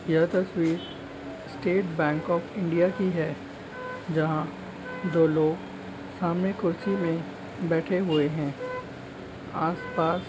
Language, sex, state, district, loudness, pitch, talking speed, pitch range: Hindi, male, Bihar, Jamui, -27 LUFS, 165 Hz, 115 wpm, 155-180 Hz